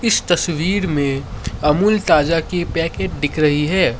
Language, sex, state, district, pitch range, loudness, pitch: Hindi, male, Assam, Sonitpur, 145-180 Hz, -17 LUFS, 165 Hz